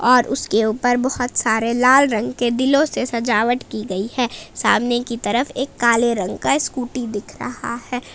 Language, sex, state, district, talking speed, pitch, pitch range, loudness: Hindi, female, Jharkhand, Palamu, 185 wpm, 240 Hz, 230-250 Hz, -19 LUFS